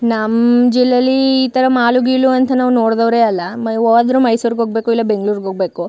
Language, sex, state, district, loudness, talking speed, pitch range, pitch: Kannada, female, Karnataka, Chamarajanagar, -14 LUFS, 175 wpm, 225-250 Hz, 235 Hz